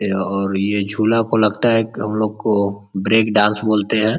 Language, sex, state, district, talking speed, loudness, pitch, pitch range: Hindi, male, Uttar Pradesh, Ghazipur, 215 wpm, -17 LUFS, 105 Hz, 100-110 Hz